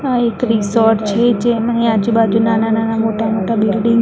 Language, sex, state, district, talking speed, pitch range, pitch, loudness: Gujarati, female, Maharashtra, Mumbai Suburban, 150 wpm, 220-230 Hz, 225 Hz, -15 LUFS